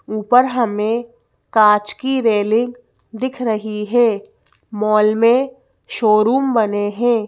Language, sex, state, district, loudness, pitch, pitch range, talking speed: Hindi, female, Madhya Pradesh, Bhopal, -16 LUFS, 225 Hz, 215-245 Hz, 105 wpm